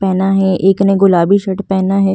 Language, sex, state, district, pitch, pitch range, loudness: Hindi, female, Delhi, New Delhi, 195 Hz, 190-195 Hz, -12 LUFS